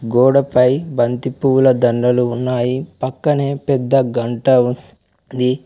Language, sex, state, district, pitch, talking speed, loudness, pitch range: Telugu, male, Telangana, Mahabubabad, 130 Hz, 95 wpm, -16 LUFS, 125-135 Hz